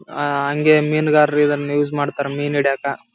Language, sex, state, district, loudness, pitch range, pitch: Kannada, male, Karnataka, Raichur, -18 LUFS, 140-150 Hz, 145 Hz